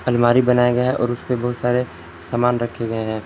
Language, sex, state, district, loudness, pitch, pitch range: Hindi, male, Jharkhand, Palamu, -19 LUFS, 120 Hz, 115-125 Hz